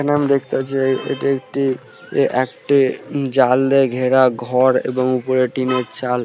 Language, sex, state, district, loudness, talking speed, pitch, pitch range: Bengali, male, West Bengal, Purulia, -18 LUFS, 155 wpm, 130 Hz, 125-135 Hz